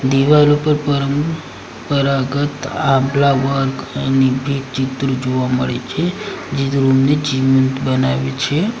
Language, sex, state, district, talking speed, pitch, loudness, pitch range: Gujarati, male, Gujarat, Valsad, 110 wpm, 135 Hz, -16 LUFS, 130-145 Hz